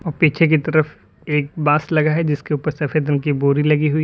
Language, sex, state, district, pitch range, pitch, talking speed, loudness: Hindi, male, Uttar Pradesh, Lalitpur, 150-155 Hz, 150 Hz, 250 wpm, -18 LUFS